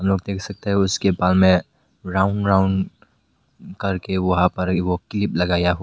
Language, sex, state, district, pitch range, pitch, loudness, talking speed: Hindi, male, Meghalaya, West Garo Hills, 90-100 Hz, 95 Hz, -20 LUFS, 165 wpm